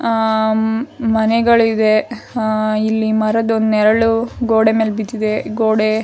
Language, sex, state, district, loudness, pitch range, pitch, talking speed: Kannada, female, Karnataka, Shimoga, -15 LUFS, 215-225 Hz, 220 Hz, 100 wpm